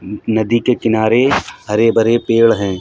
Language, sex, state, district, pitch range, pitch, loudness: Hindi, male, Uttar Pradesh, Hamirpur, 110-115 Hz, 115 Hz, -14 LUFS